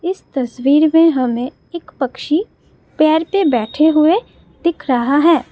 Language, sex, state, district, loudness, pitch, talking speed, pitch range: Hindi, female, Assam, Kamrup Metropolitan, -15 LUFS, 310 Hz, 140 wpm, 265-335 Hz